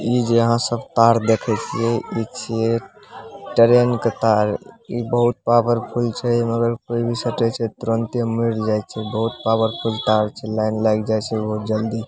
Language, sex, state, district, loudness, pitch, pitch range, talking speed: Maithili, male, Bihar, Samastipur, -20 LUFS, 115 Hz, 110-120 Hz, 180 wpm